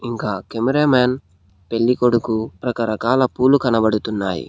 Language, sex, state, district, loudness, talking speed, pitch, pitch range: Telugu, male, Telangana, Hyderabad, -18 LUFS, 95 wpm, 115 Hz, 110-125 Hz